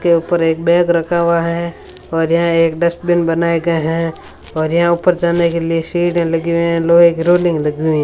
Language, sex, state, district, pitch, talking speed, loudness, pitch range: Hindi, female, Rajasthan, Bikaner, 170 Hz, 225 wpm, -15 LUFS, 165-170 Hz